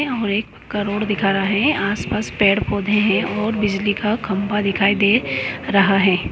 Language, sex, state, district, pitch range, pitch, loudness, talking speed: Hindi, male, West Bengal, Jalpaiguri, 200-210 Hz, 205 Hz, -18 LUFS, 160 wpm